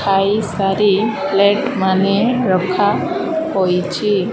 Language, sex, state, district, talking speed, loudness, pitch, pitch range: Odia, female, Odisha, Malkangiri, 95 wpm, -16 LUFS, 200 Hz, 195-220 Hz